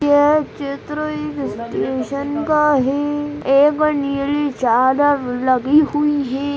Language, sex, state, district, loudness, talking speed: Hindi, female, Maharashtra, Nagpur, -18 LUFS, 100 wpm